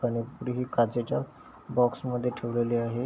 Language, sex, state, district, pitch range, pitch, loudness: Marathi, male, Maharashtra, Chandrapur, 120-125 Hz, 120 Hz, -29 LUFS